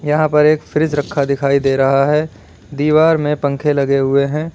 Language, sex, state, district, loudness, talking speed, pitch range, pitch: Hindi, male, Uttar Pradesh, Lalitpur, -15 LUFS, 195 wpm, 140-150 Hz, 145 Hz